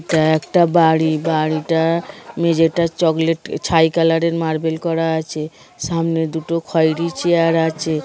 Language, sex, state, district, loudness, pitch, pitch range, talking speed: Bengali, female, West Bengal, Dakshin Dinajpur, -17 LUFS, 165 Hz, 160-165 Hz, 125 wpm